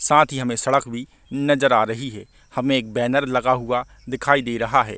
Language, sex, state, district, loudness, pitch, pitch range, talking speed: Hindi, male, Chhattisgarh, Bastar, -20 LUFS, 130 Hz, 120-140 Hz, 215 wpm